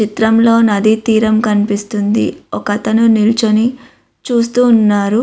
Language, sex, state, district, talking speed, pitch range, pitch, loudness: Telugu, female, Andhra Pradesh, Visakhapatnam, 90 wpm, 210-230 Hz, 220 Hz, -12 LUFS